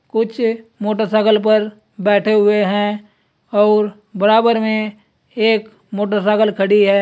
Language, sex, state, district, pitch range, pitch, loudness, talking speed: Hindi, male, Uttar Pradesh, Saharanpur, 205-220 Hz, 210 Hz, -16 LUFS, 110 wpm